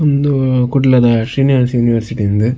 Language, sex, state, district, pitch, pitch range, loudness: Tulu, male, Karnataka, Dakshina Kannada, 125 Hz, 115-135 Hz, -13 LUFS